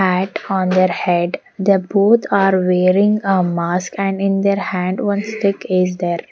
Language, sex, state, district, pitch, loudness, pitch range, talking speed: English, female, Haryana, Jhajjar, 190 Hz, -16 LUFS, 180-200 Hz, 170 wpm